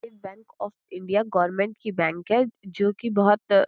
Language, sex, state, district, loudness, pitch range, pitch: Hindi, female, Uttar Pradesh, Gorakhpur, -24 LUFS, 190-220 Hz, 205 Hz